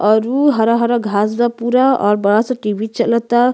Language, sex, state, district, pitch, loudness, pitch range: Bhojpuri, female, Uttar Pradesh, Gorakhpur, 235 Hz, -15 LUFS, 215-240 Hz